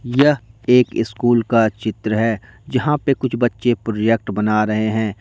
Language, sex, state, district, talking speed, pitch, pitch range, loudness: Hindi, male, Jharkhand, Deoghar, 160 wpm, 115 Hz, 110-125 Hz, -18 LUFS